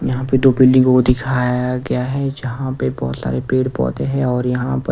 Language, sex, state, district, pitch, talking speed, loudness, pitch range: Hindi, male, Odisha, Nuapada, 125 Hz, 220 wpm, -17 LUFS, 125-130 Hz